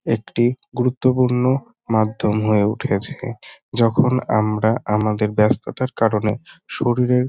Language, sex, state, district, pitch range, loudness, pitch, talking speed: Bengali, male, West Bengal, North 24 Parganas, 105-125 Hz, -19 LUFS, 115 Hz, 100 wpm